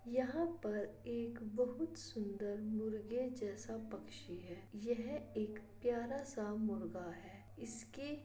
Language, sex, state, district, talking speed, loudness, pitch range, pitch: Hindi, female, Bihar, Kishanganj, 125 wpm, -43 LUFS, 205-245 Hz, 220 Hz